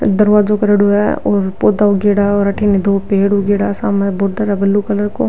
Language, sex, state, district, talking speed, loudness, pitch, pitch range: Rajasthani, female, Rajasthan, Nagaur, 195 wpm, -13 LUFS, 205 Hz, 200-205 Hz